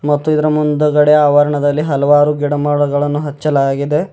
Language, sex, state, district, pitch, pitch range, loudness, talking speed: Kannada, male, Karnataka, Bidar, 145 Hz, 145-150 Hz, -13 LUFS, 100 wpm